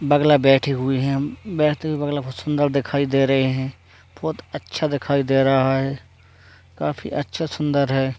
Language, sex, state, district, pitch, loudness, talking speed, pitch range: Hindi, male, Bihar, Purnia, 135 Hz, -21 LUFS, 160 wpm, 130-145 Hz